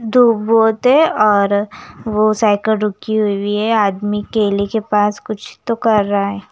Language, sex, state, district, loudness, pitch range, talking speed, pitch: Hindi, female, Chandigarh, Chandigarh, -15 LUFS, 205-220 Hz, 165 wpm, 215 Hz